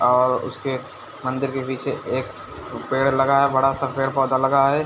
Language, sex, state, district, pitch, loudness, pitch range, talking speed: Hindi, male, Bihar, Gopalganj, 135 Hz, -21 LUFS, 130-135 Hz, 160 wpm